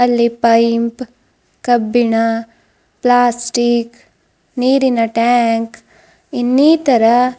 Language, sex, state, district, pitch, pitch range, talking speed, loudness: Kannada, female, Karnataka, Bidar, 240 Hz, 230-250 Hz, 55 wpm, -14 LUFS